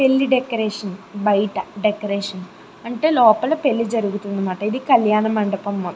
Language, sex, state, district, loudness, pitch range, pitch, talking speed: Telugu, female, Andhra Pradesh, Chittoor, -19 LUFS, 200-235 Hz, 215 Hz, 110 wpm